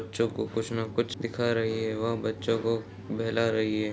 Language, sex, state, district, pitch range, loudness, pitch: Hindi, male, Bihar, Jahanabad, 110-115 Hz, -29 LUFS, 115 Hz